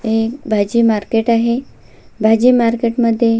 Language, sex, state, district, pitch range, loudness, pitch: Marathi, female, Maharashtra, Sindhudurg, 225-235 Hz, -15 LUFS, 230 Hz